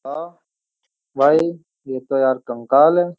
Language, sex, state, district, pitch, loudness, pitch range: Hindi, male, Uttar Pradesh, Jyotiba Phule Nagar, 140 Hz, -17 LUFS, 130-165 Hz